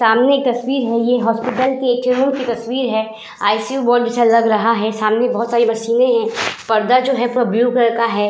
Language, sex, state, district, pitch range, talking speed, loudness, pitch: Hindi, female, Uttar Pradesh, Budaun, 225-250 Hz, 225 wpm, -16 LUFS, 240 Hz